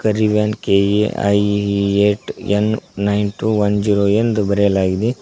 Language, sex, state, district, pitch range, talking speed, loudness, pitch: Kannada, male, Karnataka, Koppal, 100-105 Hz, 125 wpm, -17 LUFS, 105 Hz